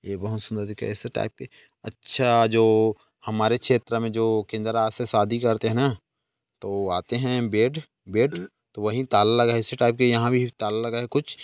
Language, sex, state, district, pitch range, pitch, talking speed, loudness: Hindi, male, Chhattisgarh, Korba, 110-120 Hz, 115 Hz, 205 wpm, -23 LUFS